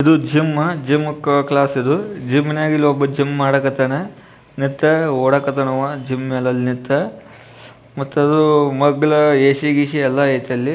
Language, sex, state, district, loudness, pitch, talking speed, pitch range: Kannada, male, Karnataka, Bijapur, -16 LUFS, 140 Hz, 100 wpm, 135-150 Hz